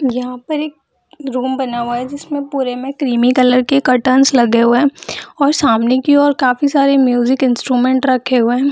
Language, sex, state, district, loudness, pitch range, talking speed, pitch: Hindi, female, Bihar, Jamui, -14 LUFS, 250-280 Hz, 195 wpm, 260 Hz